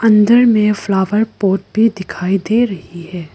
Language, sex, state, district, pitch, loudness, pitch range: Hindi, female, Arunachal Pradesh, Lower Dibang Valley, 210 Hz, -14 LUFS, 190-220 Hz